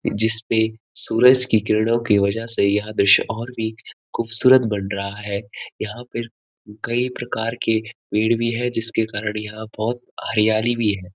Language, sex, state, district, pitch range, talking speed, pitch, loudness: Hindi, male, Uttarakhand, Uttarkashi, 105-115 Hz, 165 wpm, 110 Hz, -20 LUFS